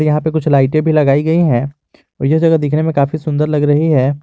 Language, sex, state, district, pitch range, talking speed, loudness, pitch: Hindi, male, Jharkhand, Garhwa, 145-155 Hz, 255 wpm, -14 LUFS, 150 Hz